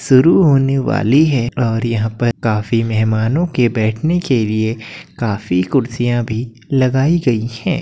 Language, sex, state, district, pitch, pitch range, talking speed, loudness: Hindi, male, Uttar Pradesh, Etah, 120 Hz, 110-135 Hz, 145 wpm, -16 LUFS